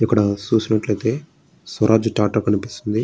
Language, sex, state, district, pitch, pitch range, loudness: Telugu, male, Andhra Pradesh, Srikakulam, 110 Hz, 105-115 Hz, -19 LUFS